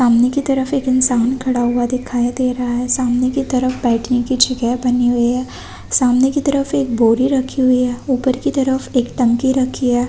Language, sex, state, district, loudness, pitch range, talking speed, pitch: Hindi, female, Chhattisgarh, Korba, -16 LUFS, 245-260 Hz, 210 wpm, 255 Hz